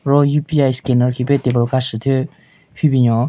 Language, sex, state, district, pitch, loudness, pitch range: Rengma, male, Nagaland, Kohima, 130 Hz, -16 LUFS, 125-140 Hz